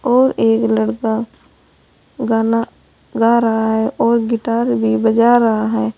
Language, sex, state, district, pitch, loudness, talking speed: Hindi, female, Uttar Pradesh, Saharanpur, 225 Hz, -15 LUFS, 130 wpm